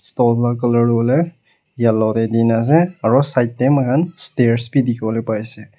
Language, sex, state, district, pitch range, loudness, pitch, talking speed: Nagamese, male, Nagaland, Kohima, 115-140 Hz, -17 LUFS, 120 Hz, 230 wpm